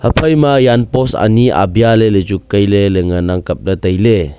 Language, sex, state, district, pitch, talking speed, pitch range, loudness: Wancho, male, Arunachal Pradesh, Longding, 100 Hz, 180 wpm, 95-120 Hz, -12 LUFS